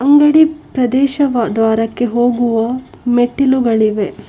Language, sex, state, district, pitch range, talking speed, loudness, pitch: Kannada, female, Karnataka, Bangalore, 225-270 Hz, 70 wpm, -14 LUFS, 245 Hz